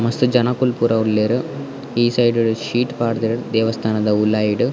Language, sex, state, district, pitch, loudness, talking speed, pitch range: Tulu, male, Karnataka, Dakshina Kannada, 115 Hz, -18 LUFS, 125 wpm, 110-125 Hz